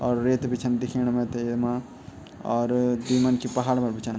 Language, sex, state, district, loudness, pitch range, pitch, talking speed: Garhwali, male, Uttarakhand, Tehri Garhwal, -25 LUFS, 120-125 Hz, 125 Hz, 200 wpm